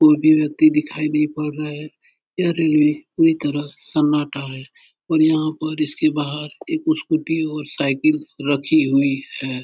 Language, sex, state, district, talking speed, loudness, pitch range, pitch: Hindi, male, Uttar Pradesh, Etah, 160 wpm, -19 LUFS, 145-155 Hz, 150 Hz